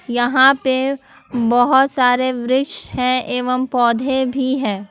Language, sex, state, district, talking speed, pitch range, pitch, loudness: Hindi, female, Jharkhand, Ranchi, 120 wpm, 245-265 Hz, 255 Hz, -17 LUFS